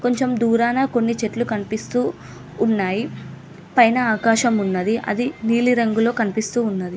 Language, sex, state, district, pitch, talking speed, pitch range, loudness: Telugu, female, Telangana, Mahabubabad, 230 Hz, 110 wpm, 220-240 Hz, -20 LUFS